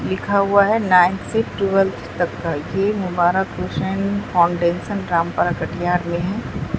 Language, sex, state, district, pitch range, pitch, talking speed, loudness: Hindi, female, Bihar, Katihar, 175-200 Hz, 185 Hz, 140 wpm, -19 LUFS